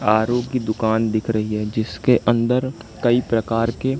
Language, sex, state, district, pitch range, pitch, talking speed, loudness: Hindi, male, Madhya Pradesh, Katni, 110-120 Hz, 115 Hz, 165 wpm, -20 LUFS